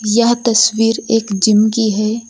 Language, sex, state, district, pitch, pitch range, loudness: Hindi, female, Uttar Pradesh, Lucknow, 225 Hz, 215-230 Hz, -13 LUFS